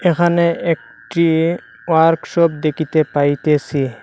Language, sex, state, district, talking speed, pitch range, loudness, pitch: Bengali, male, Assam, Hailakandi, 75 wpm, 145-170 Hz, -16 LUFS, 160 Hz